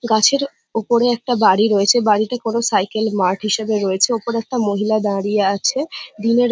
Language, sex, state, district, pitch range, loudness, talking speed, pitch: Bengali, female, West Bengal, Jhargram, 205-240 Hz, -17 LUFS, 155 wpm, 220 Hz